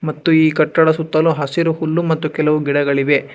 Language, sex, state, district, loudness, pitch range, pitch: Kannada, male, Karnataka, Bangalore, -16 LUFS, 150-160 Hz, 155 Hz